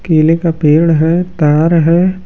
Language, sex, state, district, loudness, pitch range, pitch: Hindi, male, Bihar, Kaimur, -11 LUFS, 160-170 Hz, 165 Hz